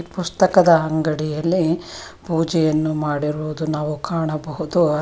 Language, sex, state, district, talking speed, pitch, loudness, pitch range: Kannada, female, Karnataka, Bangalore, 85 wpm, 155 Hz, -20 LUFS, 155-170 Hz